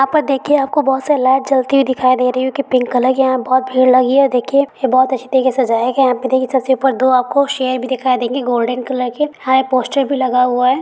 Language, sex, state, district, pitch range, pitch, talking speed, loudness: Hindi, female, Bihar, Gaya, 255-270 Hz, 260 Hz, 290 wpm, -14 LUFS